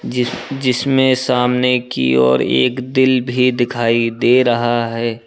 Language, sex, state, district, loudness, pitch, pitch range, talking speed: Hindi, male, Uttar Pradesh, Lucknow, -15 LUFS, 125 Hz, 115-125 Hz, 135 wpm